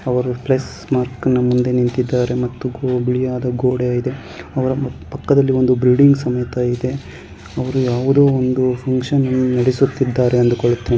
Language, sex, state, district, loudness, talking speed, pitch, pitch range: Kannada, male, Karnataka, Chamarajanagar, -17 LUFS, 115 wpm, 125 Hz, 125-130 Hz